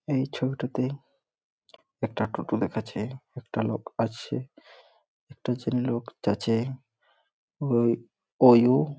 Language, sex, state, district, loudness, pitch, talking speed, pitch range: Bengali, male, West Bengal, Malda, -27 LUFS, 125 Hz, 100 wpm, 115-130 Hz